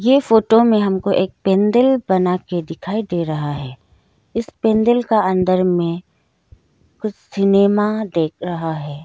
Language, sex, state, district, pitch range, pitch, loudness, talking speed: Hindi, female, Arunachal Pradesh, Lower Dibang Valley, 170-220 Hz, 190 Hz, -17 LUFS, 145 wpm